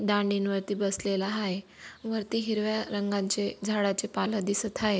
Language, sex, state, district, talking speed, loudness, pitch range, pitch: Marathi, female, Maharashtra, Dhule, 130 wpm, -29 LUFS, 200-215 Hz, 205 Hz